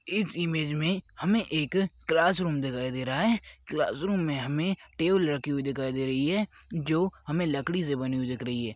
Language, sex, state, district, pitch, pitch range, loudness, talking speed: Hindi, male, Chhattisgarh, Rajnandgaon, 160 Hz, 135-180 Hz, -29 LUFS, 200 wpm